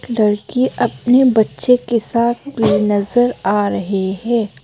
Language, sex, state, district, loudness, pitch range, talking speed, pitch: Hindi, female, Arunachal Pradesh, Papum Pare, -16 LUFS, 205-245 Hz, 130 wpm, 225 Hz